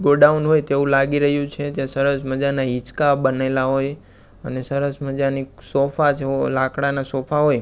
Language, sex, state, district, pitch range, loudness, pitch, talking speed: Gujarati, male, Gujarat, Gandhinagar, 135-145 Hz, -20 LUFS, 140 Hz, 155 wpm